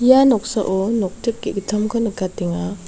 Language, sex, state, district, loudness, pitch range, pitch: Garo, female, Meghalaya, South Garo Hills, -19 LUFS, 190-230 Hz, 210 Hz